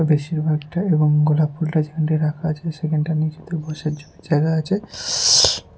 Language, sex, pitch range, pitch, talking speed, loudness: Bengali, male, 150-160 Hz, 155 Hz, 135 wpm, -20 LUFS